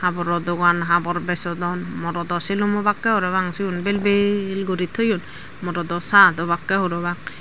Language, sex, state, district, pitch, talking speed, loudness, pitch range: Chakma, female, Tripura, Dhalai, 180 Hz, 145 wpm, -21 LUFS, 175-200 Hz